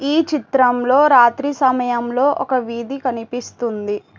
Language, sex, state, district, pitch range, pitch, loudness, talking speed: Telugu, female, Telangana, Hyderabad, 235-275 Hz, 250 Hz, -17 LUFS, 115 wpm